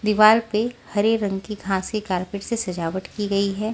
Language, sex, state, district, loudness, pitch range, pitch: Hindi, female, Bihar, West Champaran, -22 LUFS, 195-215 Hz, 205 Hz